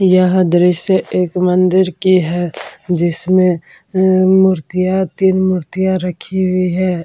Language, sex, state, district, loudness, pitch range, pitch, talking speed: Hindi, female, Bihar, Vaishali, -14 LUFS, 180-190 Hz, 185 Hz, 120 wpm